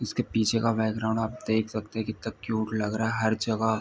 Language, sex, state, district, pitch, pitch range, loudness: Hindi, male, Uttar Pradesh, Ghazipur, 110 Hz, 110-115 Hz, -28 LUFS